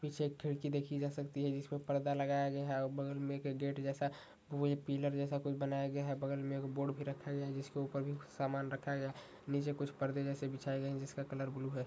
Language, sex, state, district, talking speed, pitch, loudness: Hindi, male, Uttar Pradesh, Ghazipur, 250 wpm, 140 Hz, -40 LUFS